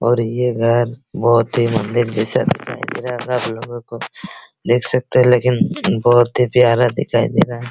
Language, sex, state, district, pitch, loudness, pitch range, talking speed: Hindi, male, Bihar, Araria, 120 Hz, -16 LUFS, 115-125 Hz, 200 wpm